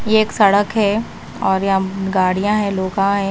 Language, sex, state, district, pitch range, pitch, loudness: Hindi, female, Himachal Pradesh, Shimla, 190-210 Hz, 195 Hz, -17 LUFS